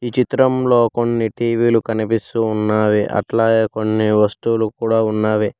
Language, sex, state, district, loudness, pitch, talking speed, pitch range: Telugu, male, Telangana, Hyderabad, -17 LUFS, 115 Hz, 150 wpm, 110-115 Hz